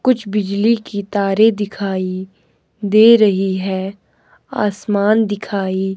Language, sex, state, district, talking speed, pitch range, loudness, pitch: Hindi, male, Himachal Pradesh, Shimla, 100 wpm, 195-215 Hz, -16 LUFS, 200 Hz